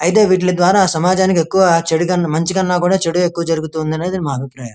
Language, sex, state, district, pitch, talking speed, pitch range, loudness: Telugu, male, Andhra Pradesh, Krishna, 175 Hz, 165 wpm, 160-185 Hz, -15 LUFS